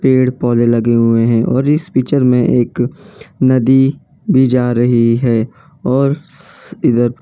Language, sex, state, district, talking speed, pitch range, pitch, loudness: Hindi, male, Gujarat, Valsad, 160 wpm, 120-135 Hz, 125 Hz, -13 LUFS